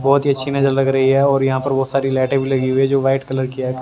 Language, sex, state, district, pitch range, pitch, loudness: Hindi, male, Haryana, Jhajjar, 130-135 Hz, 135 Hz, -17 LUFS